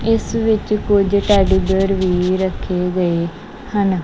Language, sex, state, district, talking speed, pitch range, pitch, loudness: Punjabi, female, Punjab, Kapurthala, 135 wpm, 185-210 Hz, 195 Hz, -17 LUFS